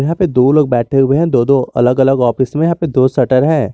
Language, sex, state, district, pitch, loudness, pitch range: Hindi, male, Jharkhand, Garhwa, 135 Hz, -12 LUFS, 130-150 Hz